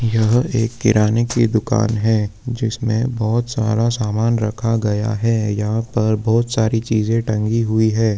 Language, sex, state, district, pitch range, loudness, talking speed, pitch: Hindi, male, Jharkhand, Jamtara, 110-115 Hz, -18 LUFS, 155 wpm, 110 Hz